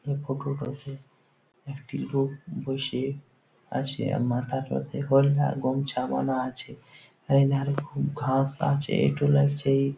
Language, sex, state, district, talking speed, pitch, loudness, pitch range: Bengali, male, West Bengal, Jhargram, 120 wpm, 135 Hz, -27 LUFS, 135-140 Hz